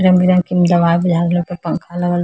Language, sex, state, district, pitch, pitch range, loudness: Maithili, female, Bihar, Samastipur, 175 Hz, 175-180 Hz, -15 LUFS